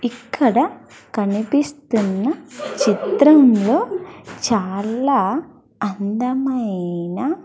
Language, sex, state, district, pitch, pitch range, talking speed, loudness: Telugu, female, Andhra Pradesh, Sri Satya Sai, 245 Hz, 210-290 Hz, 40 wpm, -19 LUFS